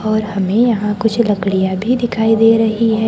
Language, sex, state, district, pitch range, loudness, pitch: Hindi, male, Maharashtra, Gondia, 205-225 Hz, -15 LUFS, 220 Hz